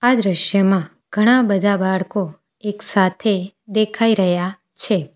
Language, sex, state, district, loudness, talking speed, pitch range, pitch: Gujarati, female, Gujarat, Valsad, -18 LUFS, 115 wpm, 185-215 Hz, 200 Hz